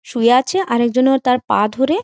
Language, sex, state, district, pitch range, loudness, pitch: Bengali, female, West Bengal, Jhargram, 235-270 Hz, -15 LUFS, 255 Hz